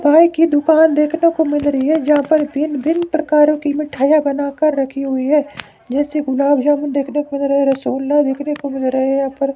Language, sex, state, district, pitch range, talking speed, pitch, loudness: Hindi, male, Himachal Pradesh, Shimla, 275-305 Hz, 225 wpm, 290 Hz, -16 LUFS